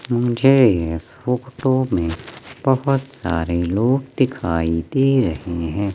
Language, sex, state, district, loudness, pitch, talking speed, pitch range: Hindi, male, Madhya Pradesh, Katni, -19 LUFS, 120 Hz, 110 wpm, 85-130 Hz